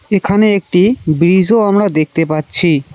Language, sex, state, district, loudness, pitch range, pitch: Bengali, male, West Bengal, Cooch Behar, -12 LUFS, 155-205 Hz, 185 Hz